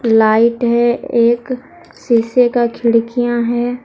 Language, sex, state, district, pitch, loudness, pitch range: Hindi, female, Jharkhand, Deoghar, 240 Hz, -14 LUFS, 235-245 Hz